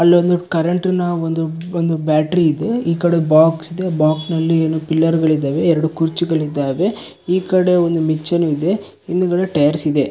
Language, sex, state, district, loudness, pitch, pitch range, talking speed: Kannada, male, Karnataka, Bellary, -16 LUFS, 165 Hz, 155-175 Hz, 140 wpm